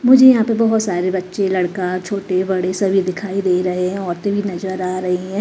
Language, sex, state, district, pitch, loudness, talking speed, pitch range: Hindi, female, Chhattisgarh, Raipur, 185 Hz, -17 LUFS, 220 wpm, 185-200 Hz